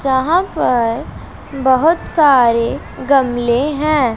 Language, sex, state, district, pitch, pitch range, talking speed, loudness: Hindi, female, Punjab, Pathankot, 265 Hz, 240-300 Hz, 85 wpm, -14 LUFS